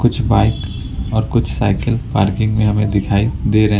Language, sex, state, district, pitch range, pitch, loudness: Hindi, male, West Bengal, Alipurduar, 100-115 Hz, 110 Hz, -16 LUFS